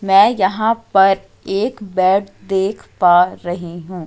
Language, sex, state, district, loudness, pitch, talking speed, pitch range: Hindi, female, Madhya Pradesh, Katni, -16 LUFS, 195 Hz, 135 wpm, 180-200 Hz